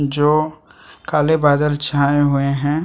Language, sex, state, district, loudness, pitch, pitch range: Hindi, male, Chhattisgarh, Sukma, -17 LUFS, 145 Hz, 145-150 Hz